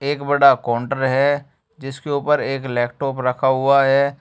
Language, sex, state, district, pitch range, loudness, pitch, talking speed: Hindi, male, Uttar Pradesh, Shamli, 130-140 Hz, -18 LUFS, 135 Hz, 155 wpm